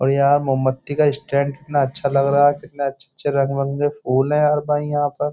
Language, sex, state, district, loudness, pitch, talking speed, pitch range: Hindi, male, Uttar Pradesh, Jyotiba Phule Nagar, -19 LUFS, 140 Hz, 225 wpm, 140-145 Hz